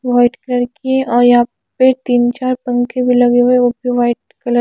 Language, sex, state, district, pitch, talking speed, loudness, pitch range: Hindi, female, Himachal Pradesh, Shimla, 245 Hz, 220 wpm, -14 LUFS, 245-255 Hz